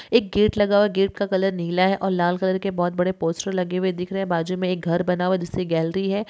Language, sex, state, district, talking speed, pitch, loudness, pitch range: Hindi, female, Bihar, Sitamarhi, 305 wpm, 185 Hz, -22 LUFS, 175-195 Hz